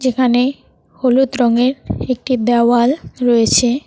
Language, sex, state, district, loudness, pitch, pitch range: Bengali, female, West Bengal, Cooch Behar, -15 LUFS, 250 Hz, 240-255 Hz